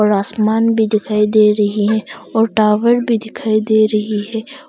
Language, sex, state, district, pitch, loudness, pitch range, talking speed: Hindi, female, Arunachal Pradesh, Longding, 215 Hz, -15 LUFS, 210-225 Hz, 180 wpm